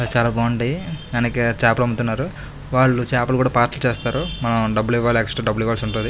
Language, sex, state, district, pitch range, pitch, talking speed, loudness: Telugu, male, Andhra Pradesh, Chittoor, 115-130 Hz, 120 Hz, 165 wpm, -20 LUFS